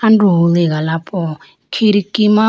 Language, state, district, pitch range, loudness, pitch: Idu Mishmi, Arunachal Pradesh, Lower Dibang Valley, 165-215 Hz, -14 LUFS, 185 Hz